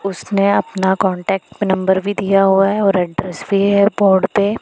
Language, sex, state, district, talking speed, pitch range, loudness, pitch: Hindi, female, Punjab, Pathankot, 170 wpm, 190-200 Hz, -15 LUFS, 195 Hz